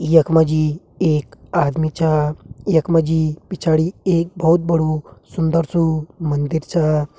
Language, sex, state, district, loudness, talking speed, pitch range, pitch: Hindi, male, Uttarakhand, Uttarkashi, -18 LUFS, 140 wpm, 155-165 Hz, 160 Hz